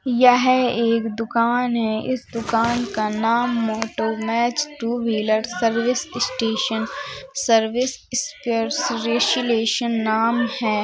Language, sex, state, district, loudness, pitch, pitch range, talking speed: Hindi, female, Uttar Pradesh, Jalaun, -21 LUFS, 230 Hz, 225-245 Hz, 95 wpm